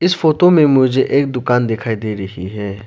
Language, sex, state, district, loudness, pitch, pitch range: Hindi, male, Arunachal Pradesh, Lower Dibang Valley, -15 LUFS, 125 Hz, 105-145 Hz